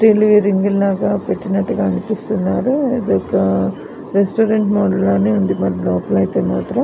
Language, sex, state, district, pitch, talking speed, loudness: Telugu, female, Andhra Pradesh, Anantapur, 200 Hz, 95 wpm, -16 LUFS